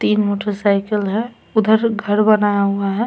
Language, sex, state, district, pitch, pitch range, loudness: Hindi, female, Bihar, Samastipur, 210 Hz, 200-215 Hz, -17 LUFS